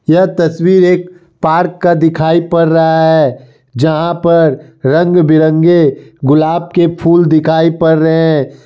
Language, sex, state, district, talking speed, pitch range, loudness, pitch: Hindi, male, Bihar, Kishanganj, 130 wpm, 155-170 Hz, -10 LUFS, 165 Hz